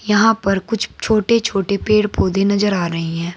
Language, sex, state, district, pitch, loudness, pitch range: Hindi, female, Uttar Pradesh, Saharanpur, 200 Hz, -17 LUFS, 190-215 Hz